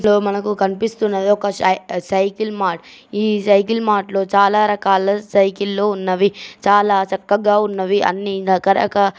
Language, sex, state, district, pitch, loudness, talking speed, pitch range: Telugu, male, Andhra Pradesh, Chittoor, 200 Hz, -17 LUFS, 145 wpm, 195-210 Hz